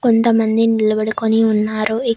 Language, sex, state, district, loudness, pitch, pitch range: Telugu, female, Andhra Pradesh, Annamaya, -16 LUFS, 225 Hz, 215-225 Hz